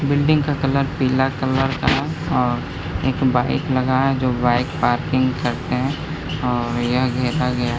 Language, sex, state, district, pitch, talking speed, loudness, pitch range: Hindi, male, Bihar, Gaya, 130 Hz, 170 wpm, -20 LUFS, 125-135 Hz